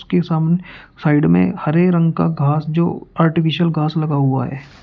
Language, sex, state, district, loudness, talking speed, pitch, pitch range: Hindi, male, Uttar Pradesh, Shamli, -17 LUFS, 150 wpm, 160 Hz, 150-170 Hz